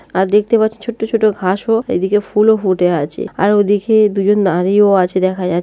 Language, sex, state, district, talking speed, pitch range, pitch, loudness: Bengali, female, West Bengal, Malda, 180 wpm, 185-215 Hz, 205 Hz, -14 LUFS